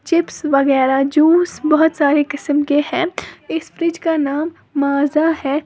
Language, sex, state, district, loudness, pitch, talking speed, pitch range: Hindi, female, Uttar Pradesh, Lalitpur, -16 LUFS, 305 Hz, 150 wpm, 285-330 Hz